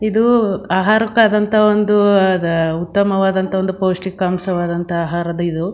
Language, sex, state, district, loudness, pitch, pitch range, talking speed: Kannada, female, Karnataka, Mysore, -16 LUFS, 190 Hz, 175-210 Hz, 105 wpm